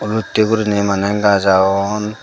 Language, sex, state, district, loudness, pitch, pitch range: Chakma, female, Tripura, Dhalai, -15 LUFS, 105 Hz, 100-110 Hz